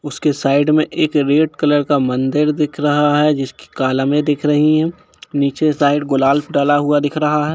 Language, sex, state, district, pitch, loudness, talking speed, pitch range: Hindi, female, Jharkhand, Jamtara, 145 Hz, -16 LUFS, 200 wpm, 140-150 Hz